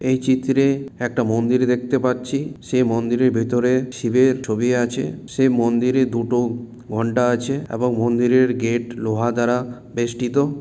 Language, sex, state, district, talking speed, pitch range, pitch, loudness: Bengali, male, West Bengal, Malda, 135 wpm, 120-130 Hz, 125 Hz, -20 LUFS